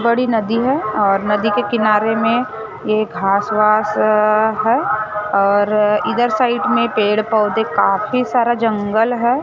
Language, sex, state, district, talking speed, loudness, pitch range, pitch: Hindi, female, Maharashtra, Gondia, 140 wpm, -16 LUFS, 210-235 Hz, 215 Hz